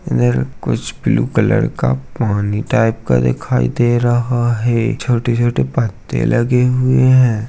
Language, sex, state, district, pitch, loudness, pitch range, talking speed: Hindi, male, Bihar, Jahanabad, 120 Hz, -15 LUFS, 100-125 Hz, 135 wpm